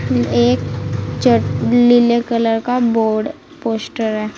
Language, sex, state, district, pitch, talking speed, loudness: Hindi, female, Uttar Pradesh, Saharanpur, 220 Hz, 110 wpm, -16 LUFS